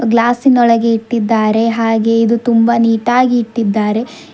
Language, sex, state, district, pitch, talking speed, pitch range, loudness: Kannada, female, Karnataka, Bidar, 230 Hz, 95 wpm, 225-235 Hz, -13 LUFS